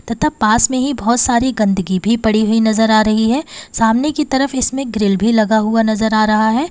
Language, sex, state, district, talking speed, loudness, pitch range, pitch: Hindi, female, Uttar Pradesh, Lalitpur, 230 wpm, -14 LUFS, 215-255 Hz, 225 Hz